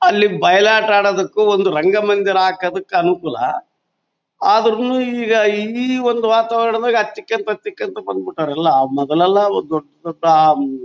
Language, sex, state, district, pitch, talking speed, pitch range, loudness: Kannada, male, Karnataka, Bellary, 210 Hz, 115 wpm, 180-230 Hz, -16 LUFS